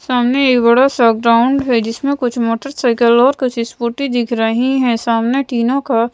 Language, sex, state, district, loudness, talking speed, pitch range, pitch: Hindi, female, Madhya Pradesh, Bhopal, -14 LUFS, 175 wpm, 235-265 Hz, 240 Hz